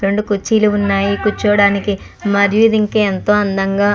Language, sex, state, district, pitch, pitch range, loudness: Telugu, female, Andhra Pradesh, Chittoor, 205 Hz, 200-210 Hz, -14 LUFS